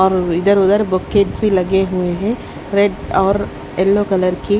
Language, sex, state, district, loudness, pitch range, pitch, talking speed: Hindi, female, Haryana, Charkhi Dadri, -16 LUFS, 185-200 Hz, 195 Hz, 170 wpm